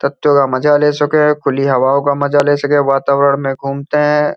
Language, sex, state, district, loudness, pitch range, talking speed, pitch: Hindi, male, Uttar Pradesh, Hamirpur, -13 LUFS, 140-150 Hz, 205 wpm, 145 Hz